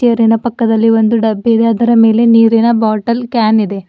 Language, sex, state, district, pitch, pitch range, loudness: Kannada, female, Karnataka, Bidar, 225 Hz, 220-235 Hz, -11 LUFS